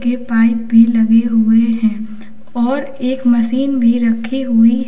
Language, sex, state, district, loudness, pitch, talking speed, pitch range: Hindi, male, Uttar Pradesh, Lalitpur, -14 LUFS, 230 Hz, 160 wpm, 225-245 Hz